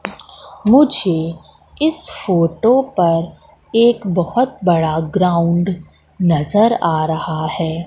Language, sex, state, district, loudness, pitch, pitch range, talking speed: Hindi, female, Madhya Pradesh, Katni, -16 LUFS, 180 Hz, 165-235 Hz, 90 wpm